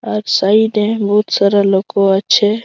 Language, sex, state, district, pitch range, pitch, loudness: Bengali, female, West Bengal, Malda, 200-215 Hz, 205 Hz, -13 LUFS